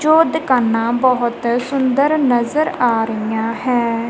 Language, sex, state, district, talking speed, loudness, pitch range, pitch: Punjabi, female, Punjab, Kapurthala, 115 wpm, -16 LUFS, 230-275 Hz, 245 Hz